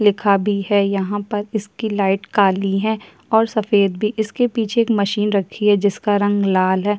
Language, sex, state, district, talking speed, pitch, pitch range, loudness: Hindi, female, Chhattisgarh, Kabirdham, 190 wpm, 205 Hz, 200-215 Hz, -18 LUFS